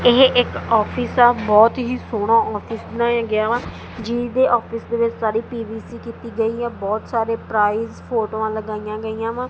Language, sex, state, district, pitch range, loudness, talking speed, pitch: Punjabi, female, Punjab, Kapurthala, 220-235 Hz, -19 LUFS, 170 wpm, 230 Hz